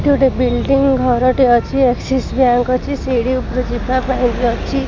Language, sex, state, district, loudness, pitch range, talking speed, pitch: Odia, female, Odisha, Khordha, -15 LUFS, 245-260 Hz, 185 wpm, 255 Hz